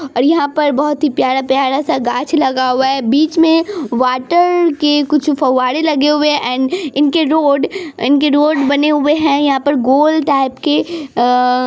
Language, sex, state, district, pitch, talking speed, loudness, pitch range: Hindi, female, Bihar, Araria, 290 Hz, 175 wpm, -13 LUFS, 265-305 Hz